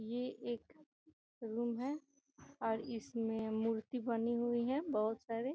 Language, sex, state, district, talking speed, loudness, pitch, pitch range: Hindi, female, Bihar, Gopalganj, 130 wpm, -39 LUFS, 235 Hz, 225-265 Hz